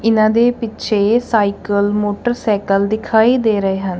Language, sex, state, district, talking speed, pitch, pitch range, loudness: Punjabi, female, Punjab, Kapurthala, 135 wpm, 215 Hz, 200-230 Hz, -15 LUFS